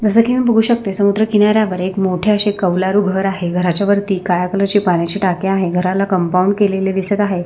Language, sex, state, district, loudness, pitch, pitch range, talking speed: Marathi, female, Maharashtra, Sindhudurg, -15 LUFS, 195 Hz, 185-205 Hz, 210 wpm